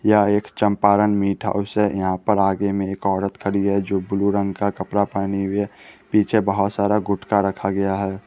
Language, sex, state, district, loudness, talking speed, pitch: Hindi, male, Bihar, West Champaran, -20 LUFS, 210 wpm, 100 Hz